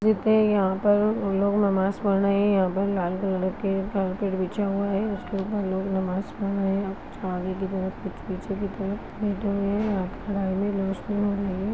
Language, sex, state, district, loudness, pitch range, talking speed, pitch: Hindi, female, Chhattisgarh, Raigarh, -26 LUFS, 190-205 Hz, 185 wpm, 195 Hz